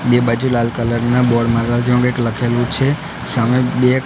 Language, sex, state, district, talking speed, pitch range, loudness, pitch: Gujarati, male, Gujarat, Gandhinagar, 190 wpm, 120-125 Hz, -15 LUFS, 120 Hz